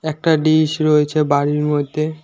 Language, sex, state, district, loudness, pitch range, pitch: Bengali, male, West Bengal, Alipurduar, -16 LUFS, 150-155 Hz, 155 Hz